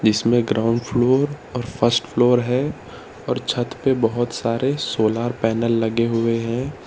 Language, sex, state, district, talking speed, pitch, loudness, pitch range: Hindi, male, Gujarat, Valsad, 150 wpm, 120 Hz, -20 LUFS, 115-125 Hz